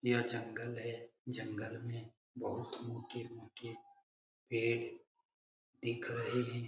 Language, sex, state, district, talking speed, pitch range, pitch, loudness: Hindi, male, Bihar, Jamui, 100 wpm, 115-120 Hz, 120 Hz, -41 LUFS